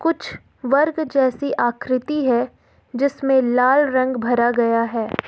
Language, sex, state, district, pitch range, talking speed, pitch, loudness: Hindi, female, Jharkhand, Ranchi, 240-280 Hz, 125 wpm, 255 Hz, -19 LUFS